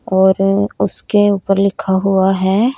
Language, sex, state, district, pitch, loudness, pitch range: Hindi, female, Haryana, Rohtak, 195 Hz, -14 LUFS, 190-205 Hz